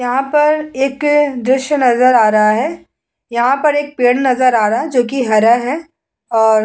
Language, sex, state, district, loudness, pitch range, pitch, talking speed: Hindi, female, Uttar Pradesh, Muzaffarnagar, -13 LUFS, 240-290 Hz, 255 Hz, 180 wpm